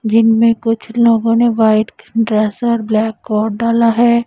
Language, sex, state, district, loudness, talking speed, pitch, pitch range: Hindi, female, Punjab, Pathankot, -14 LUFS, 155 wpm, 225 Hz, 220-230 Hz